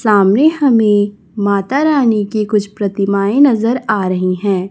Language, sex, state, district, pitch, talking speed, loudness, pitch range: Hindi, female, Chhattisgarh, Raipur, 210 Hz, 140 wpm, -13 LUFS, 200-230 Hz